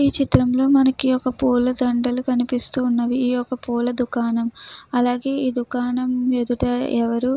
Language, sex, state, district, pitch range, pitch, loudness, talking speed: Telugu, female, Andhra Pradesh, Krishna, 245-255 Hz, 250 Hz, -20 LUFS, 140 wpm